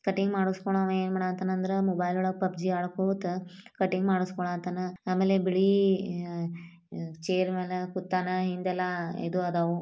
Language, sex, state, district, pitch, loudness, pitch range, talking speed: Kannada, female, Karnataka, Bijapur, 185 Hz, -29 LUFS, 180-190 Hz, 120 wpm